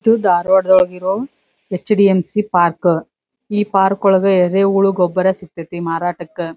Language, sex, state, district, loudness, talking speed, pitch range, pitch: Kannada, female, Karnataka, Dharwad, -15 LUFS, 100 wpm, 175-195 Hz, 185 Hz